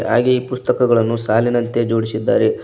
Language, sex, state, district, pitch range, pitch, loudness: Kannada, male, Karnataka, Koppal, 115-125 Hz, 120 Hz, -17 LUFS